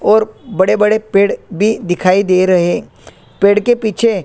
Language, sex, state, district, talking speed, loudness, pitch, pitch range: Hindi, male, Chhattisgarh, Korba, 155 wpm, -13 LUFS, 205 Hz, 185-215 Hz